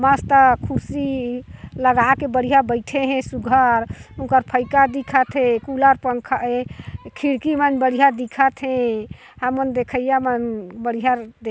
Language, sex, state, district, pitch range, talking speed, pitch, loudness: Chhattisgarhi, female, Chhattisgarh, Korba, 245-270 Hz, 130 wpm, 260 Hz, -19 LUFS